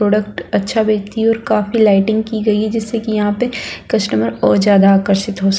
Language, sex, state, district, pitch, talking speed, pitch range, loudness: Hindi, female, Bihar, Kishanganj, 210 Hz, 215 wpm, 195-220 Hz, -15 LUFS